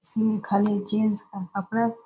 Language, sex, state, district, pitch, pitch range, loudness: Hindi, female, Bihar, Purnia, 210 Hz, 200-220 Hz, -24 LUFS